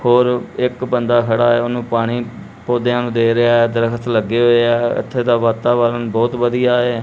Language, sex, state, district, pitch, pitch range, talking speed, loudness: Punjabi, male, Punjab, Kapurthala, 120 Hz, 115-120 Hz, 190 wpm, -16 LUFS